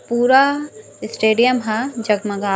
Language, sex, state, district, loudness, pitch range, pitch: Chhattisgarhi, female, Chhattisgarh, Raigarh, -17 LUFS, 215-265 Hz, 235 Hz